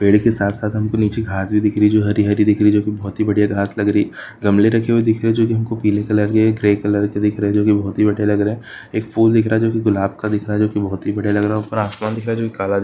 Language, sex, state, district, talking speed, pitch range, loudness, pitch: Hindi, male, Bihar, Gaya, 320 wpm, 105-110 Hz, -17 LUFS, 105 Hz